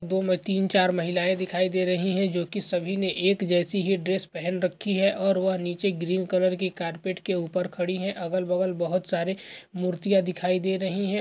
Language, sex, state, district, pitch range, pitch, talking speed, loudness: Hindi, male, Uttar Pradesh, Gorakhpur, 180-190 Hz, 185 Hz, 215 wpm, -26 LUFS